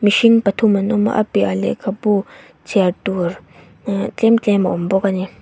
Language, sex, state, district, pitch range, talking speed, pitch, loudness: Mizo, female, Mizoram, Aizawl, 190-210 Hz, 190 wpm, 200 Hz, -17 LUFS